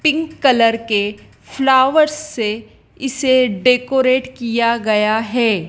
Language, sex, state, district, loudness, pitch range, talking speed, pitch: Hindi, female, Madhya Pradesh, Dhar, -16 LUFS, 225-265 Hz, 105 wpm, 250 Hz